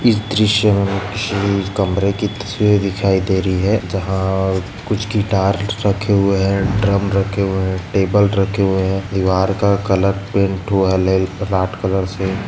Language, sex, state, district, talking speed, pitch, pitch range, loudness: Hindi, male, Maharashtra, Nagpur, 155 wpm, 100 Hz, 95-100 Hz, -17 LUFS